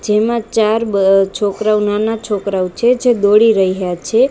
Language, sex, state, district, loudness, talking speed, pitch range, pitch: Gujarati, female, Gujarat, Gandhinagar, -14 LUFS, 155 wpm, 195-225 Hz, 210 Hz